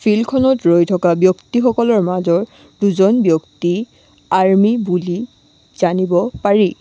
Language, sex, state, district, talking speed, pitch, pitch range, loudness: Assamese, female, Assam, Sonitpur, 95 wpm, 190 Hz, 180-220 Hz, -15 LUFS